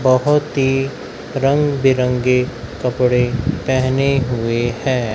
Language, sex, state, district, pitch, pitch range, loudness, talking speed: Hindi, male, Madhya Pradesh, Dhar, 130 Hz, 125-135 Hz, -17 LUFS, 95 wpm